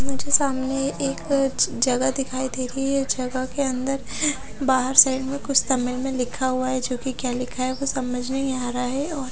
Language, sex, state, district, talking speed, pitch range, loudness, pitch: Hindi, female, Odisha, Nuapada, 210 wpm, 255-275 Hz, -22 LUFS, 265 Hz